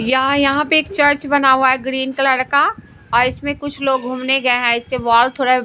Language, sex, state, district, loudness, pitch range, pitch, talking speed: Hindi, female, Bihar, Patna, -15 LUFS, 255-285 Hz, 265 Hz, 200 wpm